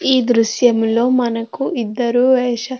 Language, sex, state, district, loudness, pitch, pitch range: Telugu, female, Andhra Pradesh, Anantapur, -16 LUFS, 245 Hz, 230-255 Hz